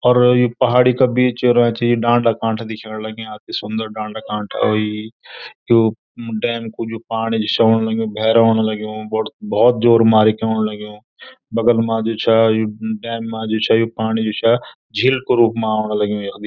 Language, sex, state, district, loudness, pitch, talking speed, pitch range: Garhwali, male, Uttarakhand, Uttarkashi, -17 LUFS, 110 Hz, 195 wpm, 110-115 Hz